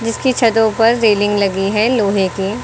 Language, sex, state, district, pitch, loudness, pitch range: Hindi, female, Uttar Pradesh, Lucknow, 220 Hz, -14 LUFS, 200-230 Hz